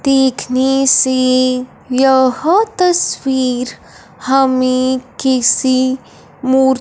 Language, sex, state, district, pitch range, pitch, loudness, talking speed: Hindi, female, Punjab, Fazilka, 255-270 Hz, 260 Hz, -13 LUFS, 60 wpm